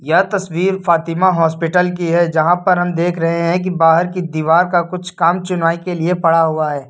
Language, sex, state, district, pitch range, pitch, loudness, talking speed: Hindi, male, Uttar Pradesh, Lucknow, 165-180 Hz, 170 Hz, -15 LUFS, 215 wpm